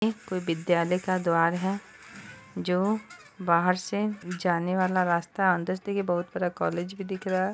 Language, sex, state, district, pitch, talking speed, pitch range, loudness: Hindi, female, Bihar, Saharsa, 185 Hz, 175 wpm, 175-190 Hz, -27 LUFS